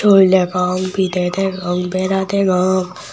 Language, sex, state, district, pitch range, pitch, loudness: Chakma, male, Tripura, Unakoti, 180-190 Hz, 185 Hz, -16 LUFS